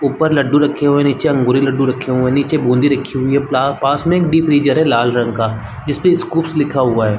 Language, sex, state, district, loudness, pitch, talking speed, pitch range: Hindi, male, Chhattisgarh, Balrampur, -14 LUFS, 140 Hz, 225 wpm, 130-145 Hz